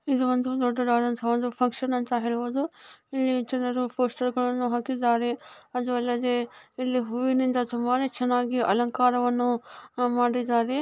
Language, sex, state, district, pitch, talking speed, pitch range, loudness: Kannada, female, Karnataka, Dharwad, 245 Hz, 110 wpm, 240-255 Hz, -26 LUFS